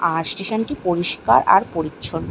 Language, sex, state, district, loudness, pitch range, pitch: Bengali, female, West Bengal, Malda, -19 LUFS, 170-220 Hz, 175 Hz